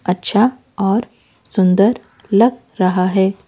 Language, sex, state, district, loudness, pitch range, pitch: Hindi, female, Odisha, Malkangiri, -16 LUFS, 185-225 Hz, 200 Hz